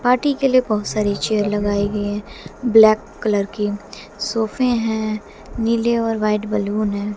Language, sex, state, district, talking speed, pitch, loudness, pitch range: Hindi, female, Haryana, Jhajjar, 160 wpm, 215 Hz, -19 LUFS, 205-230 Hz